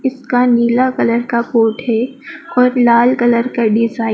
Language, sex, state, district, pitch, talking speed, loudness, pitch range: Hindi, female, Madhya Pradesh, Dhar, 240 Hz, 160 wpm, -14 LUFS, 235-255 Hz